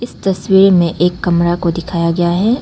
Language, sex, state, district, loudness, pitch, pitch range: Hindi, female, Arunachal Pradesh, Papum Pare, -13 LUFS, 175 Hz, 170-195 Hz